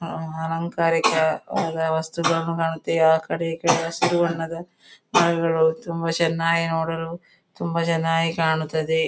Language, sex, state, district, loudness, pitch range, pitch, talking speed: Kannada, female, Karnataka, Dakshina Kannada, -22 LUFS, 160-170 Hz, 165 Hz, 110 wpm